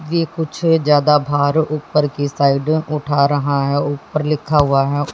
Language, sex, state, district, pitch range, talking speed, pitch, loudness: Hindi, female, Haryana, Jhajjar, 145-155 Hz, 165 wpm, 145 Hz, -17 LUFS